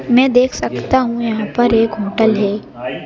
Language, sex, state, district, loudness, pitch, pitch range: Hindi, male, Madhya Pradesh, Bhopal, -15 LUFS, 225 Hz, 215-245 Hz